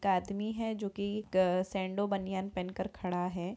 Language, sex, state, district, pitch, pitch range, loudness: Hindi, female, Bihar, Purnia, 190 Hz, 185-205 Hz, -34 LUFS